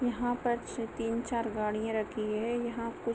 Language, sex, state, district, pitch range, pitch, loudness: Hindi, female, Jharkhand, Sahebganj, 220-240 Hz, 230 Hz, -33 LUFS